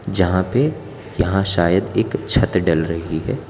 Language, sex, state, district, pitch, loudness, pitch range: Hindi, female, Gujarat, Valsad, 95 Hz, -18 LUFS, 85-115 Hz